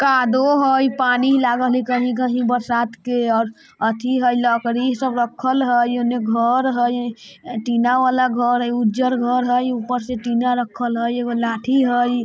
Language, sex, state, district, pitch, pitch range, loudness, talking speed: Bajjika, male, Bihar, Vaishali, 245 Hz, 240-255 Hz, -19 LUFS, 165 wpm